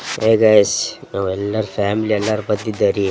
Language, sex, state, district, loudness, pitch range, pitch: Kannada, male, Karnataka, Raichur, -17 LUFS, 100-110 Hz, 105 Hz